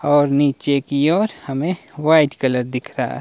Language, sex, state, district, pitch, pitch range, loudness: Hindi, male, Himachal Pradesh, Shimla, 145 Hz, 135-155 Hz, -18 LUFS